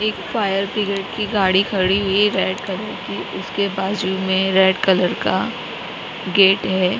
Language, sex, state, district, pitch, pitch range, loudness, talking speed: Hindi, female, Maharashtra, Mumbai Suburban, 195 Hz, 190-200 Hz, -19 LUFS, 165 wpm